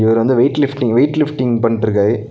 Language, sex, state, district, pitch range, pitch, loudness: Tamil, male, Tamil Nadu, Nilgiris, 115-140 Hz, 120 Hz, -15 LUFS